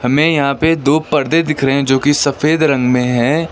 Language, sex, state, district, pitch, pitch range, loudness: Hindi, male, West Bengal, Darjeeling, 145 Hz, 135-155 Hz, -14 LUFS